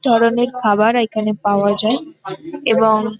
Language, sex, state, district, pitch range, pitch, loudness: Bengali, female, West Bengal, North 24 Parganas, 215-240 Hz, 225 Hz, -16 LUFS